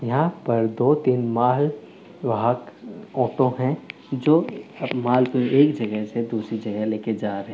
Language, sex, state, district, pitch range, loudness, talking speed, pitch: Hindi, male, Telangana, Karimnagar, 115-140 Hz, -23 LUFS, 165 wpm, 125 Hz